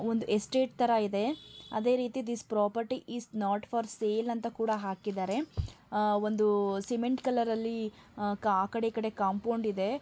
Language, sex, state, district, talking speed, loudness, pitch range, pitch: Kannada, male, Karnataka, Mysore, 145 wpm, -32 LUFS, 210-235 Hz, 220 Hz